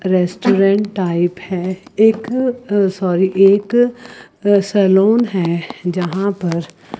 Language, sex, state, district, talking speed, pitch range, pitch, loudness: Hindi, female, Chandigarh, Chandigarh, 85 wpm, 180-210 Hz, 195 Hz, -16 LUFS